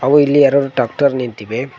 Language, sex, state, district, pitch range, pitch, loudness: Kannada, male, Karnataka, Koppal, 125-140 Hz, 135 Hz, -14 LUFS